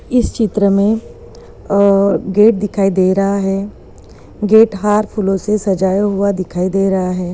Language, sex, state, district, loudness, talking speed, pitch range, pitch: Hindi, female, Bihar, Purnia, -14 LUFS, 145 wpm, 195-210 Hz, 200 Hz